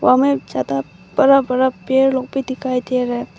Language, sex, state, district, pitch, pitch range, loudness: Hindi, female, Arunachal Pradesh, Longding, 250 Hz, 175-260 Hz, -17 LUFS